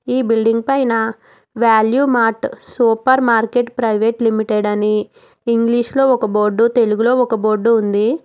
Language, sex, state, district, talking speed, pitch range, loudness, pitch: Telugu, female, Telangana, Hyderabad, 130 wpm, 220-245 Hz, -15 LUFS, 230 Hz